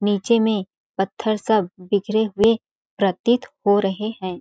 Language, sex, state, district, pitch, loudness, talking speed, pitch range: Hindi, female, Chhattisgarh, Balrampur, 205 Hz, -21 LUFS, 135 wpm, 195-220 Hz